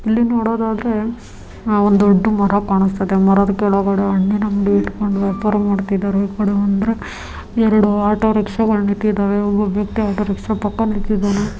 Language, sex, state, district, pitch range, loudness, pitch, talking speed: Kannada, female, Karnataka, Dharwad, 200-215 Hz, -17 LUFS, 205 Hz, 145 wpm